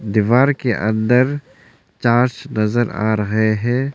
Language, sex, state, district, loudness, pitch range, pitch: Hindi, male, Arunachal Pradesh, Longding, -17 LUFS, 110-125 Hz, 120 Hz